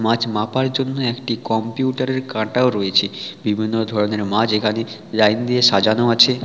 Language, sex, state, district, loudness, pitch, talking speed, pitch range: Bengali, male, West Bengal, Paschim Medinipur, -18 LUFS, 115 Hz, 140 wpm, 110-125 Hz